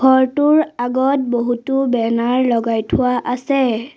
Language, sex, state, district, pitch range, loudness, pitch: Assamese, female, Assam, Sonitpur, 240-270 Hz, -17 LUFS, 250 Hz